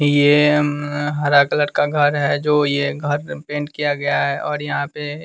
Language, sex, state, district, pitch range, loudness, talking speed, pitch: Hindi, male, Bihar, West Champaran, 145-150 Hz, -18 LUFS, 205 wpm, 145 Hz